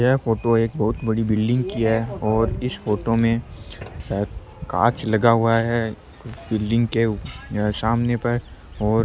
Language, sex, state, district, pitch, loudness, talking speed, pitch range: Rajasthani, male, Rajasthan, Churu, 115 Hz, -22 LUFS, 145 wpm, 105-115 Hz